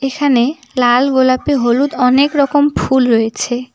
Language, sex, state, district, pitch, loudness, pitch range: Bengali, female, West Bengal, Cooch Behar, 260 Hz, -13 LUFS, 245-280 Hz